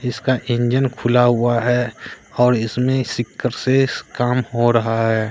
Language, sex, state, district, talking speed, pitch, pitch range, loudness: Hindi, male, Bihar, Katihar, 125 wpm, 120 Hz, 120-125 Hz, -18 LUFS